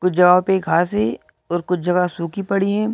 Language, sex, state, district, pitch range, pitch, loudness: Hindi, male, Madhya Pradesh, Bhopal, 180-195 Hz, 180 Hz, -19 LUFS